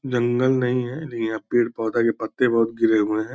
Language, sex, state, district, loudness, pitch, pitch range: Hindi, male, Bihar, Purnia, -22 LUFS, 120 Hz, 110-125 Hz